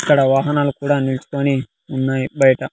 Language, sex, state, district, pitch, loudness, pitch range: Telugu, male, Andhra Pradesh, Sri Satya Sai, 135 Hz, -18 LUFS, 130-140 Hz